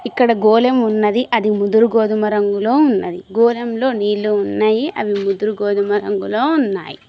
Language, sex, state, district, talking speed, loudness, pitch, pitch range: Telugu, female, Telangana, Mahabubabad, 135 wpm, -16 LUFS, 215 Hz, 205-235 Hz